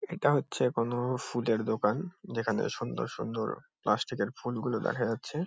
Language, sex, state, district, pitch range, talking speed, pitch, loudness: Bengali, male, West Bengal, Kolkata, 115-125 Hz, 155 wpm, 120 Hz, -32 LUFS